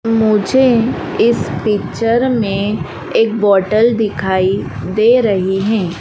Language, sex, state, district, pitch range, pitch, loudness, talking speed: Hindi, female, Madhya Pradesh, Dhar, 195-230 Hz, 215 Hz, -14 LUFS, 100 wpm